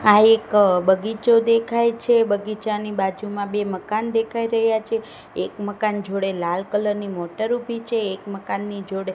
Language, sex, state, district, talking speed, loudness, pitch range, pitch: Gujarati, female, Gujarat, Gandhinagar, 155 wpm, -21 LUFS, 195-225 Hz, 210 Hz